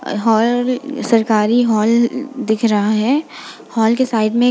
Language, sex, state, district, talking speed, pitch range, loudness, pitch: Hindi, female, Uttar Pradesh, Jalaun, 175 wpm, 220-250 Hz, -16 LUFS, 230 Hz